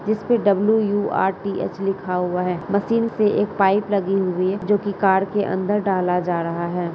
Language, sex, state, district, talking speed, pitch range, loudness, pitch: Hindi, female, Uttar Pradesh, Hamirpur, 215 wpm, 185-205 Hz, -20 LUFS, 195 Hz